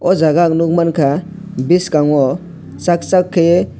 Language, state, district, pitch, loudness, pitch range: Kokborok, Tripura, West Tripura, 170 Hz, -14 LUFS, 155-180 Hz